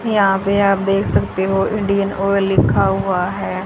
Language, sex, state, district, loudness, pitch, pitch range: Hindi, female, Haryana, Rohtak, -17 LUFS, 195 Hz, 185-200 Hz